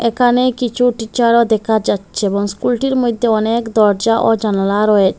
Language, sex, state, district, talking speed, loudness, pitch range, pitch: Bengali, female, Assam, Hailakandi, 150 wpm, -15 LUFS, 210-240 Hz, 225 Hz